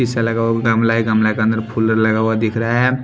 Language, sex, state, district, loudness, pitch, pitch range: Hindi, male, Haryana, Jhajjar, -16 LUFS, 115 Hz, 110-115 Hz